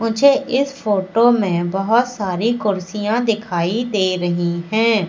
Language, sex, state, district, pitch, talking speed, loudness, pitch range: Hindi, female, Madhya Pradesh, Katni, 215 Hz, 130 wpm, -18 LUFS, 185-235 Hz